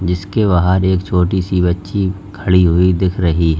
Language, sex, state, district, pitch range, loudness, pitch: Hindi, male, Uttar Pradesh, Lalitpur, 90-95 Hz, -15 LUFS, 90 Hz